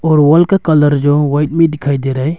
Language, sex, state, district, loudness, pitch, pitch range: Hindi, male, Arunachal Pradesh, Longding, -12 LUFS, 150 Hz, 145-160 Hz